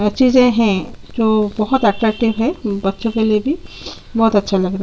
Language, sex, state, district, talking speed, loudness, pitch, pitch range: Hindi, female, Chhattisgarh, Sukma, 200 wpm, -16 LUFS, 220 Hz, 205-235 Hz